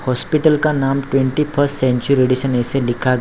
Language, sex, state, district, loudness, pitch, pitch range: Hindi, male, Gujarat, Valsad, -17 LUFS, 135 Hz, 130-145 Hz